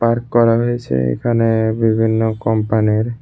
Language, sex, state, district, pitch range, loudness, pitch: Bengali, male, Tripura, West Tripura, 110-115 Hz, -16 LUFS, 115 Hz